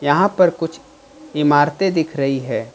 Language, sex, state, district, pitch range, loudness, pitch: Hindi, male, Jharkhand, Ranchi, 145-195 Hz, -17 LUFS, 165 Hz